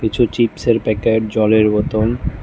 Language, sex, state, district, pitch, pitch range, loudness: Bengali, male, Tripura, West Tripura, 110 Hz, 110-115 Hz, -16 LUFS